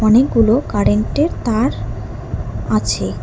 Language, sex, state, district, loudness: Bengali, female, West Bengal, Alipurduar, -17 LUFS